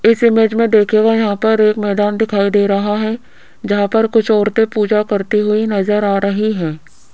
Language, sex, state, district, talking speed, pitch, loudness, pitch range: Hindi, female, Rajasthan, Jaipur, 195 wpm, 210 Hz, -14 LUFS, 205-220 Hz